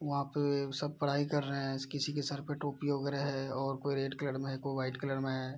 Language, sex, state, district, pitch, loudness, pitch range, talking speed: Hindi, male, Bihar, Araria, 140 Hz, -36 LUFS, 135-145 Hz, 270 wpm